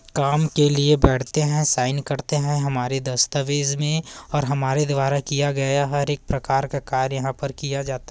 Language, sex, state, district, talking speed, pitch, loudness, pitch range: Hindi, male, Chhattisgarh, Korba, 185 wpm, 140 Hz, -22 LUFS, 135-145 Hz